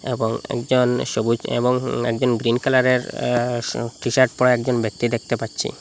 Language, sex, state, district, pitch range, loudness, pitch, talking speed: Bengali, male, Assam, Hailakandi, 115-125 Hz, -20 LUFS, 120 Hz, 145 wpm